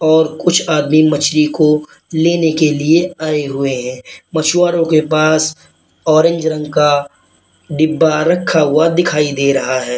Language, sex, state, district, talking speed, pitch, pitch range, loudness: Hindi, male, Uttar Pradesh, Lalitpur, 145 wpm, 155 Hz, 145-160 Hz, -13 LUFS